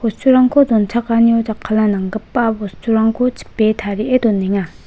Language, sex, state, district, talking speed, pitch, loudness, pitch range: Garo, female, Meghalaya, West Garo Hills, 85 wpm, 220 Hz, -15 LUFS, 210-235 Hz